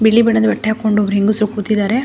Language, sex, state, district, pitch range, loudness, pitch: Kannada, female, Karnataka, Dakshina Kannada, 210-220 Hz, -15 LUFS, 215 Hz